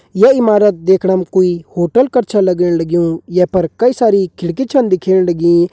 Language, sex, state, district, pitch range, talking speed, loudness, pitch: Hindi, male, Uttarakhand, Uttarkashi, 175-210 Hz, 180 wpm, -13 LUFS, 185 Hz